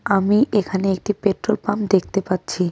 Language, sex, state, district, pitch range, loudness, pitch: Bengali, female, West Bengal, Cooch Behar, 190-205 Hz, -20 LUFS, 195 Hz